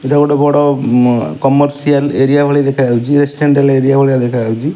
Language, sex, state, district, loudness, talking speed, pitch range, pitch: Odia, male, Odisha, Malkangiri, -11 LUFS, 165 wpm, 130-145 Hz, 140 Hz